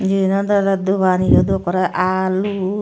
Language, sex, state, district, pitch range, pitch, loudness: Chakma, female, Tripura, Dhalai, 185-195 Hz, 190 Hz, -17 LUFS